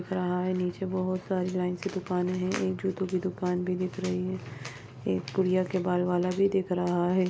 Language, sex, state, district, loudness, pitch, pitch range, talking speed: Hindi, female, Maharashtra, Nagpur, -29 LUFS, 180 Hz, 180-185 Hz, 220 wpm